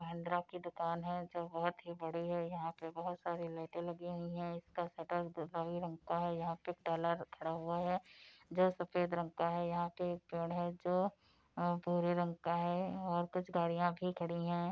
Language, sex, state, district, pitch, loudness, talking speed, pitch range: Hindi, female, Uttar Pradesh, Budaun, 175 Hz, -40 LUFS, 195 wpm, 170-175 Hz